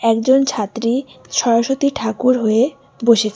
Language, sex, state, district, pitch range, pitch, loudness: Bengali, female, West Bengal, Alipurduar, 225-270 Hz, 240 Hz, -17 LUFS